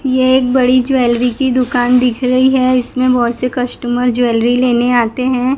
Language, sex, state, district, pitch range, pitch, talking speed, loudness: Hindi, female, Gujarat, Gandhinagar, 245-255 Hz, 250 Hz, 185 wpm, -13 LUFS